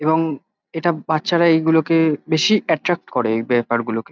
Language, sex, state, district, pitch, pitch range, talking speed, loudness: Bengali, male, West Bengal, Kolkata, 160 Hz, 145-165 Hz, 145 wpm, -18 LUFS